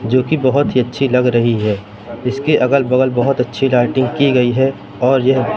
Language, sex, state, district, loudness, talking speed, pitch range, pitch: Hindi, male, Madhya Pradesh, Katni, -15 LUFS, 205 wpm, 120-135 Hz, 125 Hz